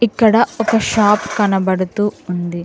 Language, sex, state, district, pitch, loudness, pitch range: Telugu, female, Telangana, Mahabubabad, 205 Hz, -15 LUFS, 185-220 Hz